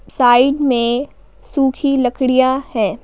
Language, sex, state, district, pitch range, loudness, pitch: Hindi, female, Madhya Pradesh, Bhopal, 245-275 Hz, -15 LUFS, 260 Hz